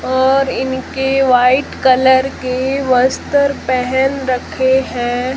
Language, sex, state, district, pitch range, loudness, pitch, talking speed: Hindi, female, Rajasthan, Jaisalmer, 255-270 Hz, -14 LUFS, 260 Hz, 100 wpm